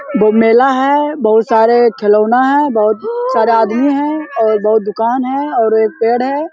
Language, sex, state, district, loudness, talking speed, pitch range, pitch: Hindi, male, Bihar, Jamui, -12 LUFS, 175 wpm, 220-280 Hz, 235 Hz